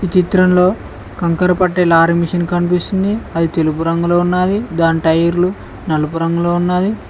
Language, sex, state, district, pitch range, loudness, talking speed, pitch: Telugu, male, Telangana, Mahabubabad, 165-180 Hz, -15 LUFS, 135 wpm, 175 Hz